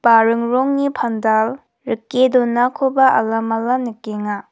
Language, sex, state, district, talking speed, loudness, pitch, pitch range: Garo, female, Meghalaya, West Garo Hills, 95 wpm, -17 LUFS, 235 Hz, 225-255 Hz